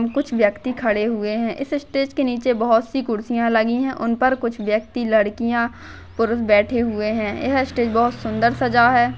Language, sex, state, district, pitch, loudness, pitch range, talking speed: Hindi, female, Maharashtra, Dhule, 235 Hz, -20 LUFS, 220-250 Hz, 185 wpm